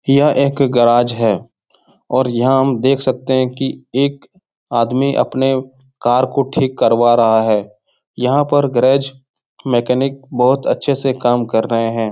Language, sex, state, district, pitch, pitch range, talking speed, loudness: Hindi, male, Bihar, Jahanabad, 130 Hz, 120-135 Hz, 155 wpm, -15 LUFS